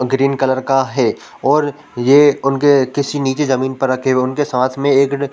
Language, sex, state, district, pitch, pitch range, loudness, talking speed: Hindi, male, Chhattisgarh, Korba, 135 Hz, 130-140 Hz, -15 LUFS, 205 wpm